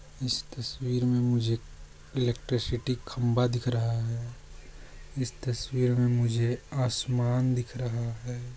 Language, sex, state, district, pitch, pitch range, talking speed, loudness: Hindi, male, Maharashtra, Sindhudurg, 120 Hz, 115-125 Hz, 120 wpm, -29 LUFS